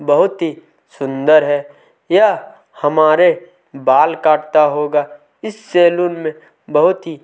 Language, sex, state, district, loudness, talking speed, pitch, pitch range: Hindi, male, Chhattisgarh, Kabirdham, -15 LUFS, 115 wpm, 155 Hz, 145-175 Hz